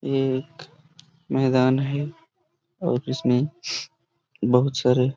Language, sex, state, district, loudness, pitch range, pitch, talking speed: Hindi, male, Jharkhand, Sahebganj, -23 LUFS, 130-150 Hz, 135 Hz, 95 wpm